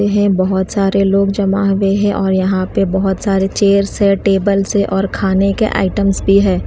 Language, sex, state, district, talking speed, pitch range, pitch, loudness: Hindi, female, Haryana, Charkhi Dadri, 200 wpm, 195-200 Hz, 195 Hz, -14 LUFS